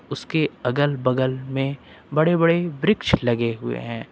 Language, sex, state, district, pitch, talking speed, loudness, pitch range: Hindi, male, Uttar Pradesh, Lucknow, 135 Hz, 145 wpm, -22 LUFS, 125-165 Hz